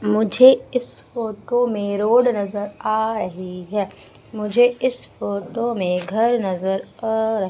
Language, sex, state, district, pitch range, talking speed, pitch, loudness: Hindi, female, Madhya Pradesh, Umaria, 200-240 Hz, 130 wpm, 215 Hz, -20 LUFS